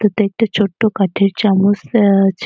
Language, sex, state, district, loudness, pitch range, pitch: Bengali, female, West Bengal, North 24 Parganas, -15 LUFS, 195-215 Hz, 205 Hz